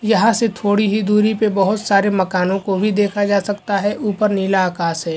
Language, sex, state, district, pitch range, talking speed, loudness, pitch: Hindi, male, Chhattisgarh, Bilaspur, 195-210 Hz, 220 wpm, -17 LUFS, 205 Hz